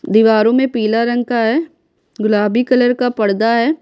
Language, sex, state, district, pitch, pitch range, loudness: Hindi, female, Bihar, Kishanganj, 235 Hz, 220-250 Hz, -14 LUFS